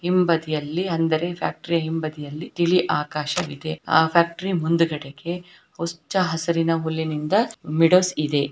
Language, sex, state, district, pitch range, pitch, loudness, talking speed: Kannada, female, Karnataka, Shimoga, 155-175 Hz, 165 Hz, -22 LUFS, 100 wpm